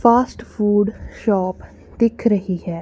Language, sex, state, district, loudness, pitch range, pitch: Hindi, female, Punjab, Kapurthala, -19 LUFS, 185-230 Hz, 205 Hz